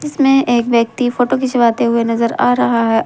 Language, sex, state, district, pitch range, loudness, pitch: Hindi, female, Jharkhand, Ranchi, 235-260 Hz, -14 LUFS, 240 Hz